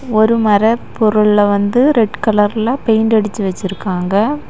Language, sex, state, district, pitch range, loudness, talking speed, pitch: Tamil, female, Tamil Nadu, Kanyakumari, 205-225 Hz, -14 LUFS, 135 wpm, 215 Hz